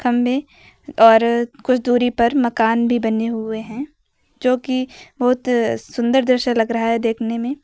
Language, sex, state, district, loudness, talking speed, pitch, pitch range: Hindi, female, Uttar Pradesh, Lucknow, -18 LUFS, 155 wpm, 240 Hz, 230-255 Hz